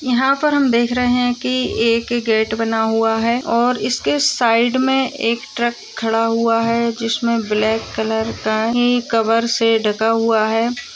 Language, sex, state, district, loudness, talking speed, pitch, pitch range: Hindi, female, Uttar Pradesh, Jalaun, -17 LUFS, 170 wpm, 230 Hz, 225-245 Hz